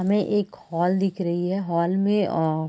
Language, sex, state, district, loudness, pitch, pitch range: Hindi, female, Bihar, Gopalganj, -24 LUFS, 185 Hz, 170-195 Hz